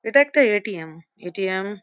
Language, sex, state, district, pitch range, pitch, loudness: Bengali, female, West Bengal, Jhargram, 185-225 Hz, 200 Hz, -20 LUFS